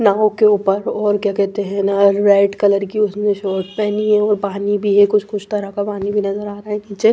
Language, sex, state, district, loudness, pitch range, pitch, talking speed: Hindi, female, Punjab, Pathankot, -17 LUFS, 200-210 Hz, 205 Hz, 250 wpm